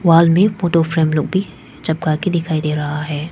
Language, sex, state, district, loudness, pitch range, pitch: Hindi, female, Arunachal Pradesh, Papum Pare, -17 LUFS, 155-175 Hz, 165 Hz